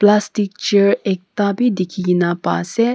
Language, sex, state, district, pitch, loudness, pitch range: Nagamese, female, Nagaland, Kohima, 200 Hz, -17 LUFS, 185-210 Hz